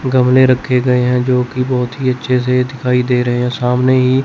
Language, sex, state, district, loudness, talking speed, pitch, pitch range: Hindi, male, Chandigarh, Chandigarh, -14 LUFS, 240 wpm, 125 Hz, 125-130 Hz